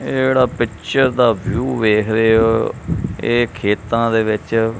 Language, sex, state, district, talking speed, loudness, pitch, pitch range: Punjabi, male, Punjab, Kapurthala, 150 wpm, -17 LUFS, 115 Hz, 110-120 Hz